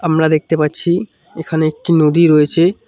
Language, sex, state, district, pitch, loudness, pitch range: Bengali, male, West Bengal, Cooch Behar, 160 Hz, -14 LUFS, 155-170 Hz